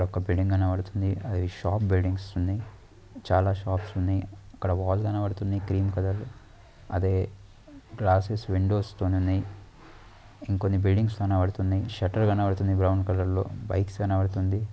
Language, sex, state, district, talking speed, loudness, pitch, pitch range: Telugu, male, Andhra Pradesh, Guntur, 125 wpm, -27 LUFS, 95 Hz, 95-100 Hz